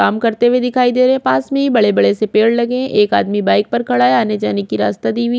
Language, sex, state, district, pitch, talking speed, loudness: Hindi, female, Chhattisgarh, Korba, 210 Hz, 300 wpm, -14 LUFS